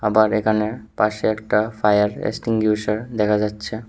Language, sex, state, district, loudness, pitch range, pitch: Bengali, male, Tripura, West Tripura, -20 LUFS, 105-110 Hz, 110 Hz